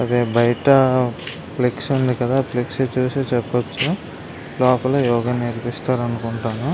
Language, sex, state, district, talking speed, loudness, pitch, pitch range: Telugu, male, Andhra Pradesh, Visakhapatnam, 105 wpm, -20 LUFS, 125 Hz, 120-130 Hz